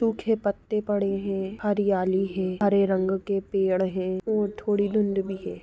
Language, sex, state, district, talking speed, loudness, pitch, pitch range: Hindi, female, Jharkhand, Sahebganj, 170 wpm, -26 LUFS, 195 Hz, 190-205 Hz